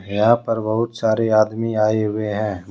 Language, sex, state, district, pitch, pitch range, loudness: Hindi, male, Jharkhand, Deoghar, 110 Hz, 105-115 Hz, -19 LUFS